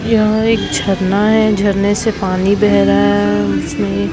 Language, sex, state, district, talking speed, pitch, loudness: Hindi, male, Chhattisgarh, Raipur, 160 wpm, 200 Hz, -14 LUFS